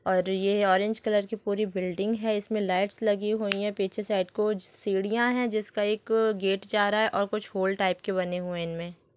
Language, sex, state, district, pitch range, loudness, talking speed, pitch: Hindi, female, Chhattisgarh, Sukma, 190-215 Hz, -27 LUFS, 210 wpm, 205 Hz